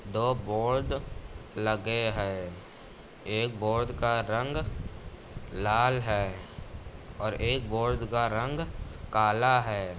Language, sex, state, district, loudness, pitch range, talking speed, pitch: Hindi, male, Uttar Pradesh, Budaun, -29 LUFS, 100-120 Hz, 100 wpm, 110 Hz